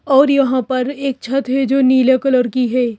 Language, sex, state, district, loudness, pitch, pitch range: Hindi, female, Madhya Pradesh, Bhopal, -15 LUFS, 260 Hz, 255-275 Hz